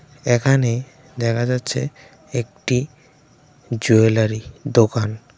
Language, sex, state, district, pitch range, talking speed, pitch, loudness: Bengali, male, Tripura, West Tripura, 115-145 Hz, 65 wpm, 125 Hz, -20 LUFS